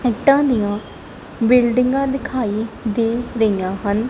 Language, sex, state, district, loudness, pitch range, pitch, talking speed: Punjabi, female, Punjab, Kapurthala, -18 LUFS, 215-250 Hz, 235 Hz, 100 wpm